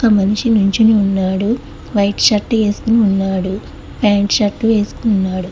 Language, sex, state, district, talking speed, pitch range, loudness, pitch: Telugu, male, Telangana, Hyderabad, 130 wpm, 195-220 Hz, -15 LUFS, 205 Hz